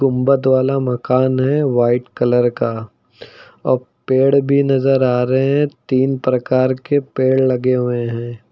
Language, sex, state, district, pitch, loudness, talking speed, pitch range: Hindi, male, Uttar Pradesh, Lucknow, 130 Hz, -16 LUFS, 150 wpm, 125-135 Hz